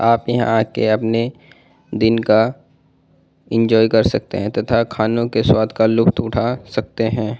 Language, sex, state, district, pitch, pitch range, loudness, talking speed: Hindi, male, Delhi, New Delhi, 115 Hz, 110-115 Hz, -17 LUFS, 170 wpm